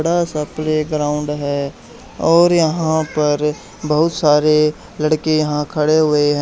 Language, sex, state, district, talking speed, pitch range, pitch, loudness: Hindi, male, Haryana, Charkhi Dadri, 130 wpm, 150-160 Hz, 155 Hz, -16 LUFS